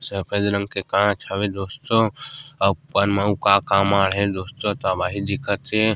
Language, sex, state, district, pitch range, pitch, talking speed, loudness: Chhattisgarhi, male, Chhattisgarh, Sarguja, 100-105 Hz, 100 Hz, 170 wpm, -21 LUFS